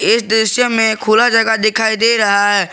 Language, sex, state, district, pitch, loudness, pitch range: Hindi, male, Jharkhand, Garhwa, 220 Hz, -12 LUFS, 215-225 Hz